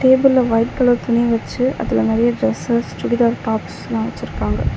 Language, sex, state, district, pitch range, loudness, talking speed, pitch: Tamil, female, Tamil Nadu, Chennai, 220-245 Hz, -18 LUFS, 140 wpm, 235 Hz